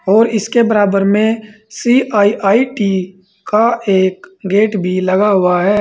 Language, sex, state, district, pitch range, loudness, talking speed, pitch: Hindi, male, Uttar Pradesh, Saharanpur, 190-220 Hz, -13 LUFS, 125 wpm, 205 Hz